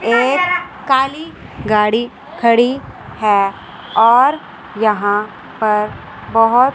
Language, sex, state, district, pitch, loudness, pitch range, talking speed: Hindi, female, Chandigarh, Chandigarh, 230 Hz, -15 LUFS, 215-265 Hz, 80 wpm